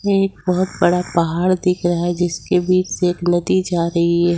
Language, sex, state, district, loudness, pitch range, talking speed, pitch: Hindi, female, Jharkhand, Ranchi, -18 LUFS, 175-185 Hz, 220 wpm, 175 Hz